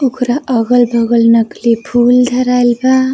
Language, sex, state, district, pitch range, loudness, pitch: Bhojpuri, female, Uttar Pradesh, Varanasi, 235-255 Hz, -11 LUFS, 245 Hz